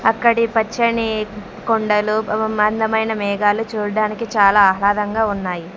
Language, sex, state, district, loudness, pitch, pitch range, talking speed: Telugu, female, Andhra Pradesh, Sri Satya Sai, -17 LUFS, 215 Hz, 205-225 Hz, 115 wpm